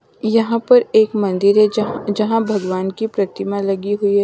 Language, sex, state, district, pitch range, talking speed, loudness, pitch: Hindi, female, Himachal Pradesh, Shimla, 200-220 Hz, 185 wpm, -17 LUFS, 210 Hz